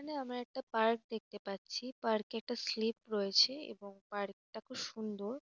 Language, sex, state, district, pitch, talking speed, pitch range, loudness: Bengali, female, West Bengal, North 24 Parganas, 225 Hz, 175 wpm, 205-245 Hz, -37 LUFS